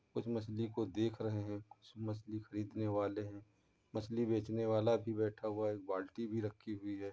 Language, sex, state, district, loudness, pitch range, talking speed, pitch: Hindi, male, Uttar Pradesh, Muzaffarnagar, -40 LUFS, 105-110 Hz, 200 wpm, 110 Hz